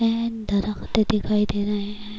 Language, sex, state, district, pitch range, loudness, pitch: Urdu, female, Bihar, Kishanganj, 205-220 Hz, -24 LUFS, 210 Hz